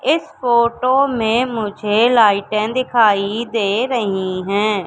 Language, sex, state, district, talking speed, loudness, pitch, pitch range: Hindi, female, Madhya Pradesh, Katni, 110 wpm, -16 LUFS, 225 Hz, 205-245 Hz